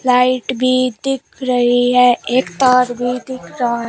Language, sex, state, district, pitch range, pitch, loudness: Hindi, female, Uttar Pradesh, Shamli, 245-255 Hz, 250 Hz, -15 LUFS